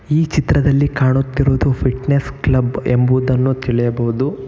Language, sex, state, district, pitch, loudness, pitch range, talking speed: Kannada, male, Karnataka, Bangalore, 130 Hz, -16 LUFS, 130-140 Hz, 95 wpm